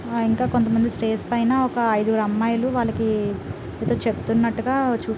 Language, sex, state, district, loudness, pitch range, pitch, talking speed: Telugu, female, Telangana, Nalgonda, -22 LUFS, 220-240 Hz, 230 Hz, 160 wpm